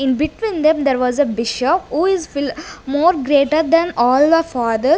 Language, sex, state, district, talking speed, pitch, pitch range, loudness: English, female, Punjab, Kapurthala, 180 wpm, 290 Hz, 260-330 Hz, -16 LUFS